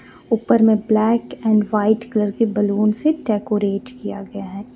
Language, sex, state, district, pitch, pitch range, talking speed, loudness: Hindi, female, Jharkhand, Deoghar, 215 Hz, 205-230 Hz, 165 wpm, -19 LUFS